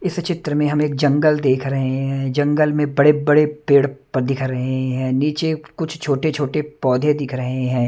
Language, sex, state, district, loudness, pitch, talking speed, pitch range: Hindi, male, Punjab, Kapurthala, -19 LUFS, 145 Hz, 190 wpm, 130-150 Hz